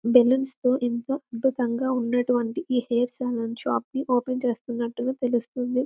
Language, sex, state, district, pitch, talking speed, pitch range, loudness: Telugu, female, Telangana, Karimnagar, 245 Hz, 145 wpm, 240-255 Hz, -25 LUFS